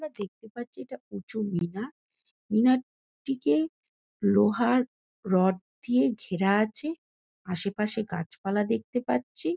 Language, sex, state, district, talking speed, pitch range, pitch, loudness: Bengali, female, West Bengal, Kolkata, 105 wpm, 195-245 Hz, 215 Hz, -28 LUFS